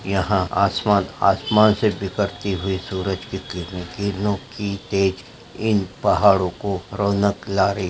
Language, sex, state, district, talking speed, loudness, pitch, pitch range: Hindi, male, Uttarakhand, Uttarkashi, 145 wpm, -21 LUFS, 100 Hz, 95-105 Hz